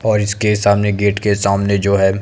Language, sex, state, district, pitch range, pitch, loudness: Hindi, male, Himachal Pradesh, Shimla, 100-105 Hz, 100 Hz, -15 LUFS